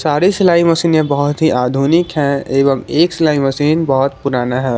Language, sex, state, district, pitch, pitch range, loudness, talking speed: Hindi, male, Jharkhand, Garhwa, 145 Hz, 135-165 Hz, -14 LUFS, 175 wpm